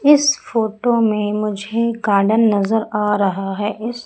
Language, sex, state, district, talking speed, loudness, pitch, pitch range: Hindi, female, Madhya Pradesh, Umaria, 150 wpm, -17 LUFS, 215 Hz, 205-230 Hz